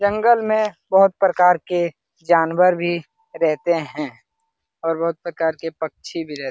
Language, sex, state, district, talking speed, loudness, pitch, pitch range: Hindi, male, Bihar, Lakhisarai, 155 wpm, -19 LUFS, 170 Hz, 165-195 Hz